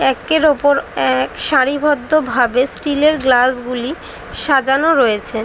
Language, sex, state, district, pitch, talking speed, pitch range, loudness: Bengali, female, West Bengal, Dakshin Dinajpur, 270 Hz, 120 wpm, 245-295 Hz, -15 LUFS